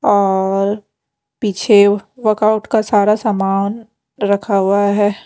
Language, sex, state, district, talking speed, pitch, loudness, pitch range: Hindi, female, Punjab, Pathankot, 115 wpm, 205 Hz, -15 LUFS, 200-215 Hz